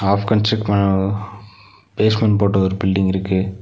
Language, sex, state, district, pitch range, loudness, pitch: Tamil, male, Tamil Nadu, Nilgiris, 95-105 Hz, -18 LUFS, 100 Hz